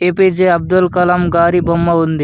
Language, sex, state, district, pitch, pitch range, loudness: Telugu, male, Andhra Pradesh, Anantapur, 175 Hz, 170-180 Hz, -12 LUFS